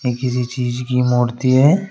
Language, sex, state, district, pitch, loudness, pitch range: Hindi, male, Uttar Pradesh, Shamli, 125 Hz, -17 LUFS, 125-130 Hz